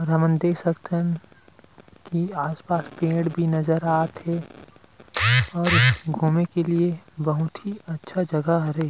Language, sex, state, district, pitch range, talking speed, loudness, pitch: Chhattisgarhi, male, Chhattisgarh, Rajnandgaon, 160-170 Hz, 130 wpm, -23 LUFS, 165 Hz